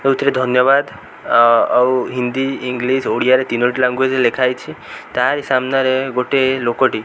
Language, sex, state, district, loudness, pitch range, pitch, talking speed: Odia, male, Odisha, Khordha, -16 LUFS, 125-135 Hz, 130 Hz, 135 wpm